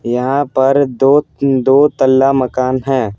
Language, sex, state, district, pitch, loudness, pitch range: Hindi, male, Bihar, Patna, 135 Hz, -13 LUFS, 130-140 Hz